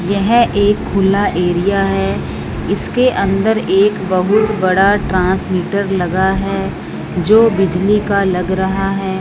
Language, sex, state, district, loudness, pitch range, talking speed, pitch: Hindi, male, Punjab, Fazilka, -14 LUFS, 190-205 Hz, 125 wpm, 195 Hz